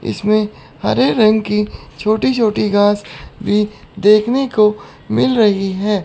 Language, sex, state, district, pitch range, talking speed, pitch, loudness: Hindi, female, Chandigarh, Chandigarh, 205-220 Hz, 130 wpm, 210 Hz, -15 LUFS